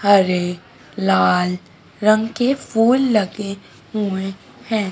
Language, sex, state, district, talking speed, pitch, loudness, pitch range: Hindi, female, Madhya Pradesh, Dhar, 95 wpm, 205 Hz, -19 LUFS, 190-220 Hz